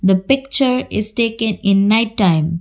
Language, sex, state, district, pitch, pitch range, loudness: English, female, Assam, Kamrup Metropolitan, 215 Hz, 195-235 Hz, -16 LUFS